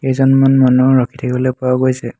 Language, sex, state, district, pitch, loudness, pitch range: Assamese, male, Assam, Hailakandi, 130 Hz, -13 LUFS, 125-135 Hz